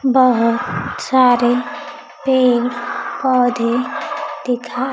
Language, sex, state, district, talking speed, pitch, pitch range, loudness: Hindi, female, Bihar, Kaimur, 60 wpm, 255 Hz, 245-300 Hz, -17 LUFS